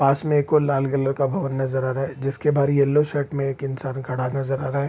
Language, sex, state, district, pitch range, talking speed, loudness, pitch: Hindi, male, Bihar, Supaul, 135-140 Hz, 280 wpm, -22 LUFS, 135 Hz